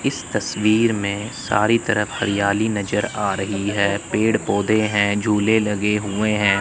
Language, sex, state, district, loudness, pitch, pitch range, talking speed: Hindi, male, Chandigarh, Chandigarh, -20 LUFS, 105 Hz, 100-110 Hz, 155 wpm